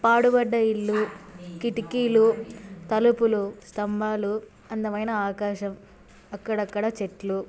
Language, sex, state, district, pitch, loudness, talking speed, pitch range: Telugu, female, Andhra Pradesh, Anantapur, 215 Hz, -25 LUFS, 70 wpm, 200-225 Hz